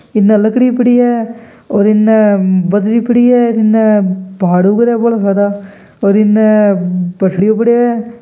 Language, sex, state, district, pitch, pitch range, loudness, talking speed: Hindi, male, Rajasthan, Churu, 215 Hz, 200-230 Hz, -11 LUFS, 145 wpm